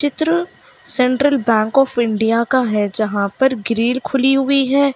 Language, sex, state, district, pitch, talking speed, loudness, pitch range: Hindi, female, Bihar, Kishanganj, 260 Hz, 155 wpm, -16 LUFS, 225-275 Hz